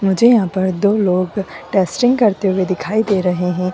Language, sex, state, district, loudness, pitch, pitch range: Hindi, female, Bihar, Gaya, -16 LUFS, 190 Hz, 185-210 Hz